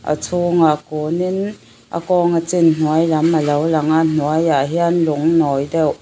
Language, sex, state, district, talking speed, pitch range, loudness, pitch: Mizo, female, Mizoram, Aizawl, 180 wpm, 155-170 Hz, -16 LUFS, 160 Hz